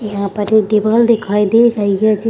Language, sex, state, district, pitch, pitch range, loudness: Hindi, female, Bihar, Gaya, 215 Hz, 205-225 Hz, -13 LUFS